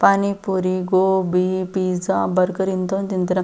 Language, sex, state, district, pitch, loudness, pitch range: Kannada, female, Karnataka, Belgaum, 185 Hz, -20 LUFS, 185-190 Hz